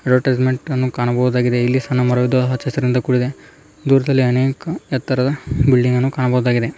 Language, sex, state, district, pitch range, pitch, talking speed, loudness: Kannada, male, Karnataka, Raichur, 125-135 Hz, 130 Hz, 115 wpm, -17 LUFS